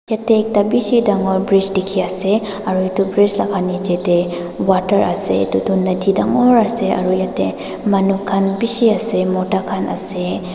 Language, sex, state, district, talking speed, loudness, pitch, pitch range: Nagamese, female, Nagaland, Dimapur, 165 wpm, -16 LUFS, 195 Hz, 185-205 Hz